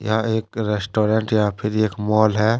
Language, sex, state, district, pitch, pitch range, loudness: Hindi, male, Jharkhand, Deoghar, 110 Hz, 105-110 Hz, -20 LUFS